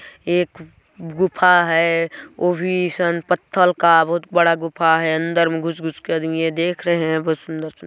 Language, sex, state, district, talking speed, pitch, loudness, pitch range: Hindi, male, Chhattisgarh, Balrampur, 175 wpm, 165 Hz, -18 LUFS, 160-175 Hz